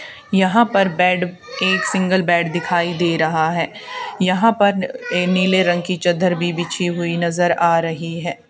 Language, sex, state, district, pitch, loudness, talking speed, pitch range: Hindi, female, Haryana, Charkhi Dadri, 180 Hz, -18 LUFS, 170 wpm, 170-195 Hz